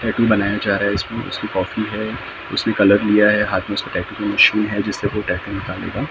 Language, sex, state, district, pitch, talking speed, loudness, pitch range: Hindi, male, Maharashtra, Mumbai Suburban, 105 Hz, 265 wpm, -18 LUFS, 100-110 Hz